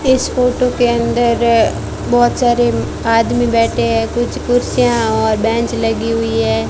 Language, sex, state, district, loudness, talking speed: Hindi, female, Rajasthan, Bikaner, -14 LUFS, 145 wpm